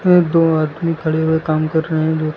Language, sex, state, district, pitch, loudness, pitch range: Hindi, male, Uttar Pradesh, Lucknow, 160 Hz, -16 LUFS, 155-165 Hz